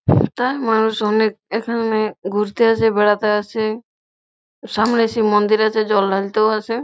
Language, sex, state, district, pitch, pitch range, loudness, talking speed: Bengali, female, West Bengal, Purulia, 215 Hz, 210-225 Hz, -18 LUFS, 130 wpm